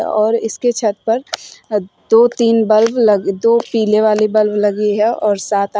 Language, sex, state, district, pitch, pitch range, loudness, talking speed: Hindi, female, Uttar Pradesh, Shamli, 215 Hz, 210-230 Hz, -14 LUFS, 175 wpm